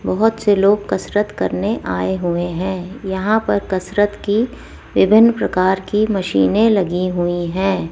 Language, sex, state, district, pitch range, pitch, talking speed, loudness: Hindi, female, Rajasthan, Jaipur, 180-210 Hz, 190 Hz, 145 wpm, -17 LUFS